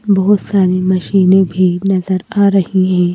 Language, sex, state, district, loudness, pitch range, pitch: Hindi, female, Madhya Pradesh, Bhopal, -13 LUFS, 185-195 Hz, 190 Hz